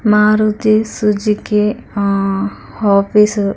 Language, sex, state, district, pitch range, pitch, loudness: Telugu, female, Andhra Pradesh, Srikakulam, 200-215 Hz, 210 Hz, -14 LUFS